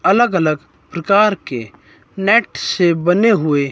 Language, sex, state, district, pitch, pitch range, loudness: Hindi, male, Himachal Pradesh, Shimla, 180 Hz, 155-205 Hz, -15 LUFS